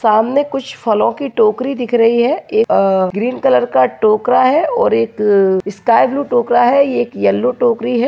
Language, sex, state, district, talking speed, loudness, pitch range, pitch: Hindi, female, Bihar, Kishanganj, 185 wpm, -14 LUFS, 215-265 Hz, 240 Hz